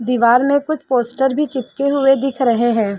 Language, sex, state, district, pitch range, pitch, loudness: Hindi, female, Chhattisgarh, Sarguja, 240-280 Hz, 265 Hz, -16 LUFS